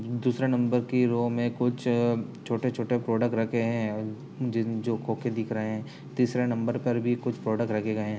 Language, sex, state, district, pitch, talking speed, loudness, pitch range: Hindi, male, Uttar Pradesh, Jyotiba Phule Nagar, 120 Hz, 175 wpm, -28 LUFS, 115-125 Hz